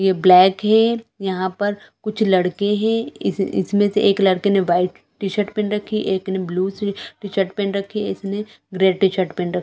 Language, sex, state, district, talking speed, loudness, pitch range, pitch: Hindi, female, Chhattisgarh, Balrampur, 205 wpm, -19 LUFS, 190-210 Hz, 195 Hz